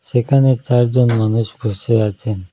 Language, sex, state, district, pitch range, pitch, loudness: Bengali, male, Assam, Hailakandi, 110-125 Hz, 115 Hz, -16 LUFS